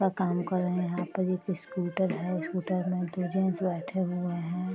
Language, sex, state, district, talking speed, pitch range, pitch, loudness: Hindi, female, Bihar, Sitamarhi, 225 wpm, 180-185 Hz, 180 Hz, -31 LUFS